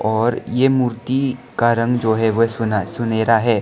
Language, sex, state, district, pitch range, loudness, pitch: Hindi, male, Arunachal Pradesh, Lower Dibang Valley, 110-125 Hz, -18 LUFS, 115 Hz